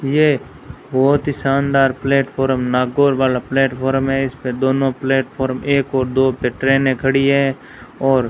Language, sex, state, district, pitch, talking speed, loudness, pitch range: Hindi, female, Rajasthan, Bikaner, 135 Hz, 160 wpm, -17 LUFS, 130-135 Hz